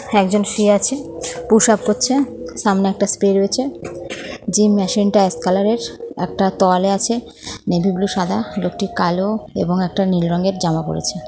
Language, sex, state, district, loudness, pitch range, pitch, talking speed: Bengali, female, West Bengal, North 24 Parganas, -17 LUFS, 185-215 Hz, 200 Hz, 160 wpm